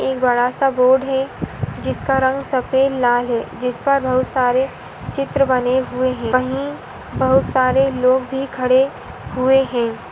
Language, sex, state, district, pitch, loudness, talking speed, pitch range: Hindi, female, Karnataka, Gulbarga, 260 Hz, -18 LUFS, 165 wpm, 250-270 Hz